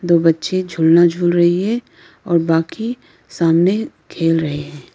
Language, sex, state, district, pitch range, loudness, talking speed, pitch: Hindi, female, Arunachal Pradesh, Lower Dibang Valley, 165-185 Hz, -16 LUFS, 145 wpm, 170 Hz